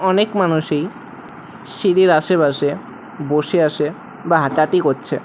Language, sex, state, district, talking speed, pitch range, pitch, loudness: Bengali, male, West Bengal, Alipurduar, 105 wpm, 150-190 Hz, 165 Hz, -17 LUFS